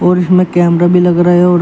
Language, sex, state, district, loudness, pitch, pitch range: Hindi, male, Uttar Pradesh, Shamli, -10 LUFS, 175 Hz, 175-180 Hz